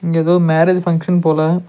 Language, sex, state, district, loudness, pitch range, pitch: Tamil, male, Tamil Nadu, Nilgiris, -14 LUFS, 165-175 Hz, 170 Hz